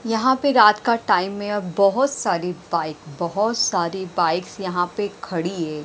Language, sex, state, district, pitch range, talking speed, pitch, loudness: Hindi, female, Maharashtra, Mumbai Suburban, 170-215 Hz, 165 wpm, 190 Hz, -21 LUFS